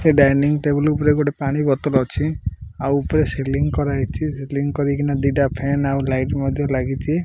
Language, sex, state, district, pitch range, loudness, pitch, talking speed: Odia, male, Odisha, Malkangiri, 135-145 Hz, -20 LUFS, 140 Hz, 175 wpm